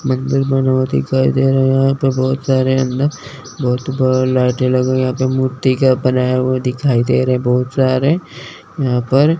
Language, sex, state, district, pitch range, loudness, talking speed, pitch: Hindi, male, Chandigarh, Chandigarh, 130-135 Hz, -15 LUFS, 205 wpm, 130 Hz